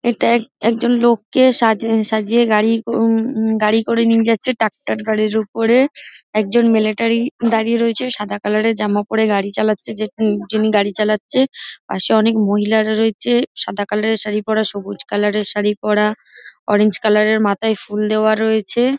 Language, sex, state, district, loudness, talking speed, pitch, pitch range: Bengali, female, West Bengal, Dakshin Dinajpur, -16 LUFS, 160 wpm, 220 Hz, 210-230 Hz